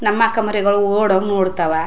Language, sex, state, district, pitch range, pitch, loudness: Kannada, female, Karnataka, Chamarajanagar, 190-210 Hz, 200 Hz, -17 LUFS